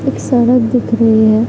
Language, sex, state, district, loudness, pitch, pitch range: Hindi, female, Bihar, Araria, -12 LUFS, 230 Hz, 220-245 Hz